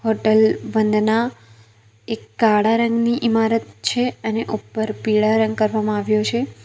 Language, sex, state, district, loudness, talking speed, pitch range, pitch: Gujarati, female, Gujarat, Valsad, -19 LUFS, 125 wpm, 215-225 Hz, 220 Hz